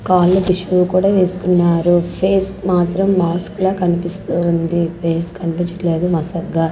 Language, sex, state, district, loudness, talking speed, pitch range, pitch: Telugu, female, Andhra Pradesh, Sri Satya Sai, -16 LUFS, 135 wpm, 170-185 Hz, 175 Hz